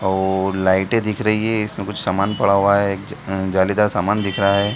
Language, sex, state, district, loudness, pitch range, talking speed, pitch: Hindi, male, Bihar, Gaya, -19 LUFS, 95-105 Hz, 225 wpm, 100 Hz